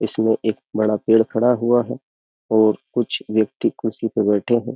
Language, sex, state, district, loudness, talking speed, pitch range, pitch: Hindi, male, Uttar Pradesh, Jyotiba Phule Nagar, -20 LUFS, 175 wpm, 110-115 Hz, 110 Hz